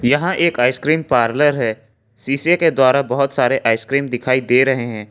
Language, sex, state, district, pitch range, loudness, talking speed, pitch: Hindi, male, Jharkhand, Ranchi, 120-140 Hz, -16 LUFS, 175 wpm, 130 Hz